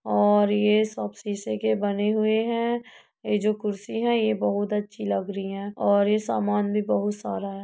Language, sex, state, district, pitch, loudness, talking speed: Hindi, female, Uttar Pradesh, Budaun, 205 Hz, -25 LUFS, 195 wpm